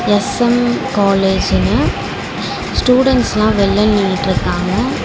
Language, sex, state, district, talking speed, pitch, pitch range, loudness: Tamil, female, Tamil Nadu, Chennai, 60 wpm, 210 Hz, 200-245 Hz, -14 LUFS